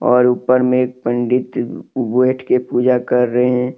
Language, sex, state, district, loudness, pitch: Hindi, male, Jharkhand, Deoghar, -16 LUFS, 125 Hz